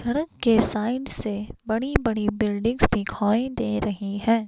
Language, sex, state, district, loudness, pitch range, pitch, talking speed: Hindi, female, Himachal Pradesh, Shimla, -24 LUFS, 210-235 Hz, 220 Hz, 145 wpm